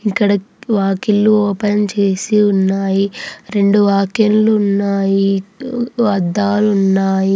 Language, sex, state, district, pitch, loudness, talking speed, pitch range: Telugu, female, Andhra Pradesh, Anantapur, 205 Hz, -15 LUFS, 80 wpm, 195-210 Hz